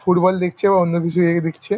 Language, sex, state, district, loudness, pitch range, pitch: Bengali, male, West Bengal, Paschim Medinipur, -18 LUFS, 170-185 Hz, 180 Hz